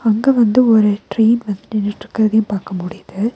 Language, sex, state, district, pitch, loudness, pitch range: Tamil, female, Tamil Nadu, Nilgiris, 220 Hz, -16 LUFS, 205-225 Hz